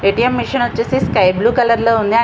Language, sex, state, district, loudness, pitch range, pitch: Telugu, female, Andhra Pradesh, Visakhapatnam, -14 LUFS, 225-240 Hz, 230 Hz